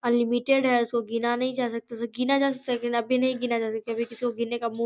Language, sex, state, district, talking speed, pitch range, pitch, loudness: Hindi, female, Bihar, Darbhanga, 310 wpm, 235-250 Hz, 240 Hz, -26 LUFS